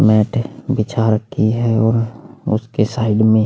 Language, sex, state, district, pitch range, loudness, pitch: Hindi, male, Chhattisgarh, Sukma, 110-115 Hz, -17 LUFS, 110 Hz